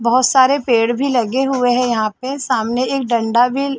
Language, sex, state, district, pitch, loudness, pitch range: Hindi, female, Chhattisgarh, Sarguja, 250 Hz, -16 LUFS, 235-265 Hz